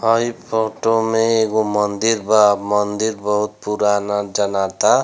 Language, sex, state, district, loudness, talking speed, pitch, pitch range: Bhojpuri, male, Bihar, Gopalganj, -18 LUFS, 120 wpm, 105 Hz, 105-110 Hz